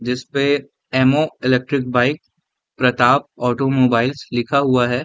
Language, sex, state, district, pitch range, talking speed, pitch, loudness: Hindi, male, Bihar, Saran, 125-140 Hz, 130 wpm, 130 Hz, -18 LUFS